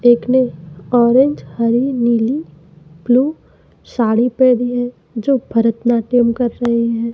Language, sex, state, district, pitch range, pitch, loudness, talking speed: Hindi, female, Madhya Pradesh, Umaria, 230-250 Hz, 240 Hz, -16 LUFS, 120 wpm